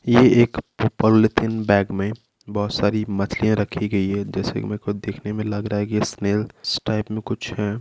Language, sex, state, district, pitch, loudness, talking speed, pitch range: Hindi, male, Rajasthan, Nagaur, 105 Hz, -21 LUFS, 205 wpm, 100-110 Hz